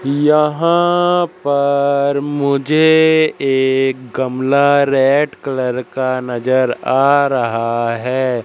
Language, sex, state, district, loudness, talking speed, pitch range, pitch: Hindi, male, Madhya Pradesh, Katni, -15 LUFS, 85 wpm, 130-145 Hz, 140 Hz